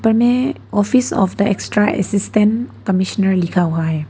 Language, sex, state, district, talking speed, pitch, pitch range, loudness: Hindi, female, Arunachal Pradesh, Papum Pare, 145 wpm, 200 Hz, 190-225 Hz, -17 LUFS